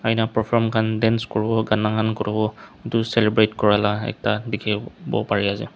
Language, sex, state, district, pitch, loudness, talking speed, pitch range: Nagamese, male, Nagaland, Dimapur, 110 Hz, -21 LUFS, 145 wpm, 105-110 Hz